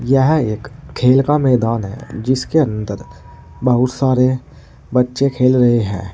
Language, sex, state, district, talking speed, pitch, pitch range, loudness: Hindi, male, Uttar Pradesh, Saharanpur, 135 wpm, 125 Hz, 110-130 Hz, -16 LUFS